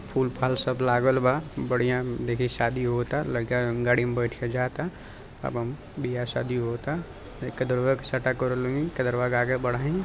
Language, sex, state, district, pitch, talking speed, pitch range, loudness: Bhojpuri, male, Bihar, Gopalganj, 125 Hz, 120 wpm, 120-130 Hz, -27 LUFS